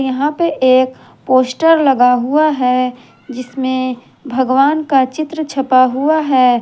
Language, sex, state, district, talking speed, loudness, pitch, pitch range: Hindi, female, Jharkhand, Garhwa, 125 wpm, -14 LUFS, 260 Hz, 255-295 Hz